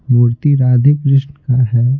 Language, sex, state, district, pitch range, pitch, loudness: Hindi, male, Bihar, Patna, 125-140 Hz, 130 Hz, -13 LUFS